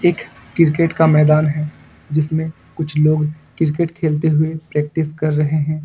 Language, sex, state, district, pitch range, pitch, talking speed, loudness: Hindi, male, Jharkhand, Ranchi, 150-160 Hz, 155 Hz, 155 wpm, -17 LUFS